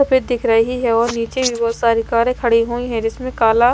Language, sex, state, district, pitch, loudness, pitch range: Hindi, female, Haryana, Rohtak, 235 Hz, -17 LUFS, 230-250 Hz